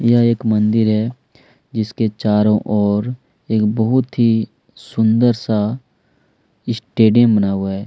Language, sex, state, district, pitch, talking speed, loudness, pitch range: Hindi, male, Chhattisgarh, Kabirdham, 110 Hz, 120 wpm, -16 LUFS, 105-120 Hz